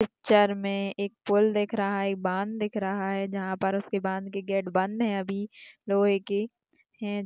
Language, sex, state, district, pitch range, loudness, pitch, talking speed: Hindi, female, Maharashtra, Dhule, 195-210 Hz, -28 LUFS, 200 Hz, 190 wpm